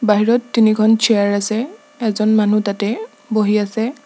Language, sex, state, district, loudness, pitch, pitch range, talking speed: Assamese, female, Assam, Sonitpur, -16 LUFS, 215 Hz, 210-225 Hz, 135 wpm